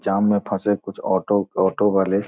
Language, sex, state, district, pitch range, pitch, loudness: Hindi, male, Bihar, Gopalganj, 95-105 Hz, 100 Hz, -21 LUFS